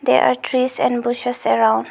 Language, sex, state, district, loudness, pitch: English, female, Arunachal Pradesh, Longding, -18 LUFS, 240 Hz